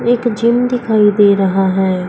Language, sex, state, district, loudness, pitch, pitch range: Hindi, female, Chandigarh, Chandigarh, -13 LUFS, 210 Hz, 195-235 Hz